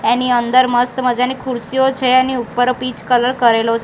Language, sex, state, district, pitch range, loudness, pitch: Gujarati, female, Gujarat, Gandhinagar, 240-255 Hz, -15 LUFS, 250 Hz